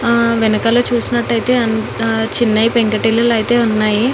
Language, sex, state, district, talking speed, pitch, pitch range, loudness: Telugu, female, Telangana, Nalgonda, 115 wpm, 230 Hz, 220-235 Hz, -14 LUFS